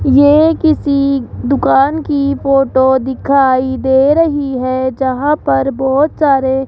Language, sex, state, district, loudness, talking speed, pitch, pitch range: Hindi, male, Rajasthan, Jaipur, -12 LUFS, 125 wpm, 275 Hz, 265-285 Hz